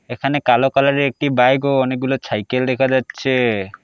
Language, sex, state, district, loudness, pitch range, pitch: Bengali, male, West Bengal, Alipurduar, -17 LUFS, 125-135 Hz, 130 Hz